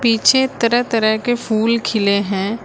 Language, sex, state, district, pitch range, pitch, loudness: Hindi, female, Uttar Pradesh, Lucknow, 215-240 Hz, 225 Hz, -16 LUFS